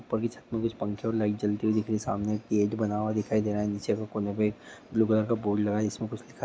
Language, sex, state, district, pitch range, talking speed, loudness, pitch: Hindi, male, Chhattisgarh, Jashpur, 105-110 Hz, 270 wpm, -29 LUFS, 105 Hz